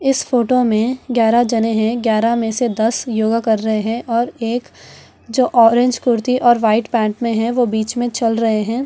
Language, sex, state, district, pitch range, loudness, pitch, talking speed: Hindi, female, Delhi, New Delhi, 225-245 Hz, -16 LUFS, 230 Hz, 205 wpm